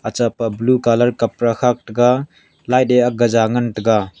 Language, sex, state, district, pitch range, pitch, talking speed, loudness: Wancho, male, Arunachal Pradesh, Longding, 115-125 Hz, 120 Hz, 155 wpm, -16 LUFS